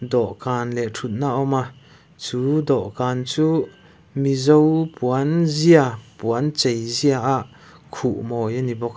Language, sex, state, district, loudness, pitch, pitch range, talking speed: Mizo, male, Mizoram, Aizawl, -20 LUFS, 130 Hz, 120-150 Hz, 140 wpm